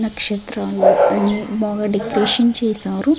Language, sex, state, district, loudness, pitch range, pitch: Telugu, female, Andhra Pradesh, Sri Satya Sai, -17 LUFS, 205-225 Hz, 210 Hz